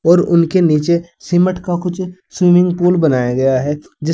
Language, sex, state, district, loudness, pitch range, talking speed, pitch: Hindi, male, Uttar Pradesh, Saharanpur, -14 LUFS, 155-180 Hz, 160 wpm, 175 Hz